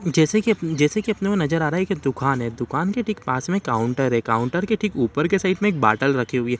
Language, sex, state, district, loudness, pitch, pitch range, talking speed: Hindi, male, Uttar Pradesh, Ghazipur, -21 LUFS, 155 Hz, 125-195 Hz, 280 wpm